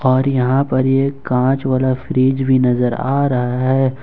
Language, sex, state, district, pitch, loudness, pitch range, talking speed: Hindi, male, Jharkhand, Ranchi, 130 Hz, -16 LUFS, 130-135 Hz, 180 wpm